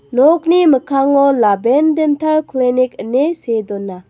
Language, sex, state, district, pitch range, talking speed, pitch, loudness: Garo, female, Meghalaya, West Garo Hills, 240-310 Hz, 115 wpm, 275 Hz, -14 LUFS